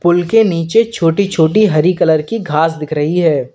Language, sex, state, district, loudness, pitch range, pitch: Hindi, male, Uttar Pradesh, Lalitpur, -13 LUFS, 160-205 Hz, 170 Hz